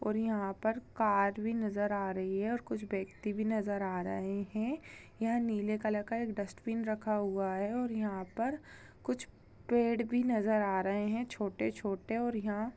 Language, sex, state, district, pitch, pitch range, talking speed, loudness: Hindi, female, Chhattisgarh, Bastar, 210 Hz, 195-230 Hz, 185 wpm, -35 LUFS